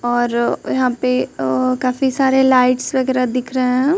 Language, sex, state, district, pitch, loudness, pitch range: Hindi, female, Bihar, Kaimur, 255 Hz, -17 LUFS, 250-260 Hz